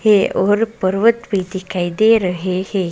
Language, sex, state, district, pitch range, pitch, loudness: Kumaoni, female, Uttarakhand, Tehri Garhwal, 185-215 Hz, 195 Hz, -17 LUFS